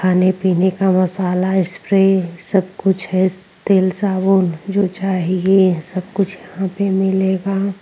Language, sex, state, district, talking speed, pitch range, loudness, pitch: Hindi, female, Uttar Pradesh, Jyotiba Phule Nagar, 130 wpm, 185-195 Hz, -17 LUFS, 190 Hz